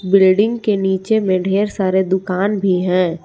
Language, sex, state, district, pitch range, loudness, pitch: Hindi, female, Jharkhand, Palamu, 185-205 Hz, -16 LUFS, 190 Hz